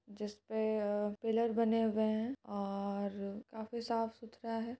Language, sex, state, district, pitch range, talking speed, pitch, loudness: Hindi, female, Bihar, Gaya, 205-230 Hz, 140 wpm, 220 Hz, -37 LUFS